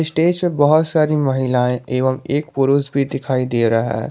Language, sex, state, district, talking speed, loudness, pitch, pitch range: Hindi, male, Jharkhand, Garhwa, 190 wpm, -17 LUFS, 140 Hz, 130-155 Hz